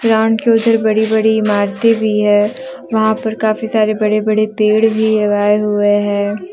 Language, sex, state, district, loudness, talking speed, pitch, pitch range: Hindi, female, Jharkhand, Deoghar, -14 LUFS, 175 wpm, 215 Hz, 210-220 Hz